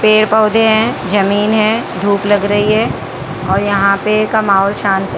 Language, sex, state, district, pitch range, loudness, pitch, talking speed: Hindi, female, Maharashtra, Mumbai Suburban, 195-215 Hz, -13 LUFS, 205 Hz, 175 wpm